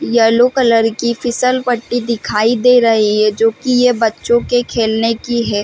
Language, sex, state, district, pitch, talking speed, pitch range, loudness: Hindi, female, Chhattisgarh, Bilaspur, 235 Hz, 170 wpm, 225-245 Hz, -14 LUFS